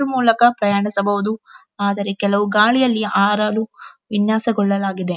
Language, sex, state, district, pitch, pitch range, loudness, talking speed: Kannada, female, Karnataka, Dharwad, 210 Hz, 200-225 Hz, -18 LUFS, 95 wpm